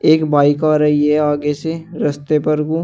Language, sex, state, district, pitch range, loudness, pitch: Hindi, male, Uttar Pradesh, Shamli, 150-155 Hz, -16 LUFS, 150 Hz